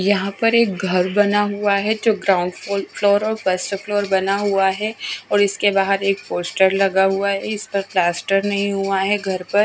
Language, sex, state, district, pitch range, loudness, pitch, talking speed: Hindi, female, Bihar, West Champaran, 190-205 Hz, -19 LUFS, 200 Hz, 200 wpm